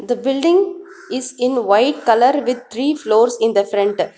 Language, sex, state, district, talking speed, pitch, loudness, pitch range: English, female, Telangana, Hyderabad, 155 wpm, 250 Hz, -16 LUFS, 230-290 Hz